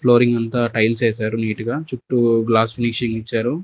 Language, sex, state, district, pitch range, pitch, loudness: Telugu, male, Andhra Pradesh, Sri Satya Sai, 115-120 Hz, 115 Hz, -18 LUFS